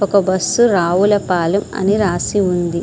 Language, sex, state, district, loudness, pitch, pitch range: Telugu, female, Andhra Pradesh, Srikakulam, -15 LUFS, 195 Hz, 175-200 Hz